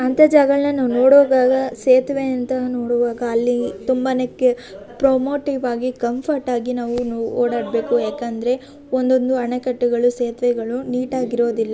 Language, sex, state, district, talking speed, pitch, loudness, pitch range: Kannada, female, Karnataka, Shimoga, 100 wpm, 250 Hz, -18 LUFS, 240-260 Hz